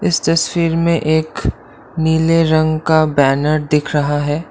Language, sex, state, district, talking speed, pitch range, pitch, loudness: Hindi, male, Assam, Kamrup Metropolitan, 145 wpm, 150-165 Hz, 155 Hz, -15 LUFS